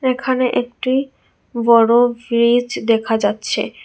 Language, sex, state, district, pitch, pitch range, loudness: Bengali, female, Tripura, West Tripura, 240 Hz, 230-255 Hz, -16 LUFS